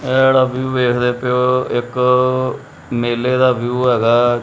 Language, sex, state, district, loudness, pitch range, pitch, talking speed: Punjabi, male, Punjab, Kapurthala, -16 LUFS, 120-130 Hz, 125 Hz, 150 wpm